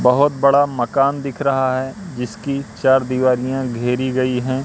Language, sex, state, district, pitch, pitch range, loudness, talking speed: Hindi, male, Madhya Pradesh, Katni, 130 Hz, 125-140 Hz, -18 LUFS, 155 wpm